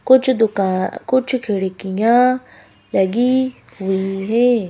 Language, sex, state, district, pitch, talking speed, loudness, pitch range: Hindi, female, Madhya Pradesh, Bhopal, 225 Hz, 90 wpm, -18 LUFS, 195-255 Hz